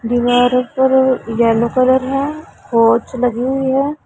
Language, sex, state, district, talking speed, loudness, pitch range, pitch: Hindi, female, Punjab, Pathankot, 120 wpm, -15 LUFS, 235-265 Hz, 250 Hz